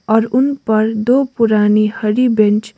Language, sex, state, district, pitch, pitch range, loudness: Hindi, female, Sikkim, Gangtok, 220 Hz, 215-245 Hz, -14 LUFS